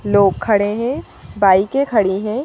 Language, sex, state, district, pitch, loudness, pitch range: Hindi, female, Madhya Pradesh, Bhopal, 210 Hz, -16 LUFS, 200-235 Hz